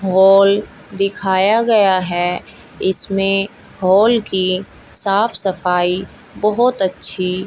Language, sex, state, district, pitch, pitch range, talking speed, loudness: Hindi, female, Haryana, Jhajjar, 195 Hz, 185-200 Hz, 90 wpm, -15 LUFS